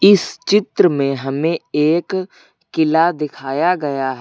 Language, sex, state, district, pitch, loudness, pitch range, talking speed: Hindi, male, Uttar Pradesh, Lucknow, 160 Hz, -17 LUFS, 140-180 Hz, 130 wpm